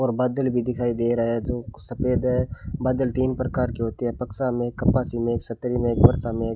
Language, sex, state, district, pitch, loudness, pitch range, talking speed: Hindi, male, Rajasthan, Bikaner, 120 Hz, -24 LUFS, 115-125 Hz, 230 wpm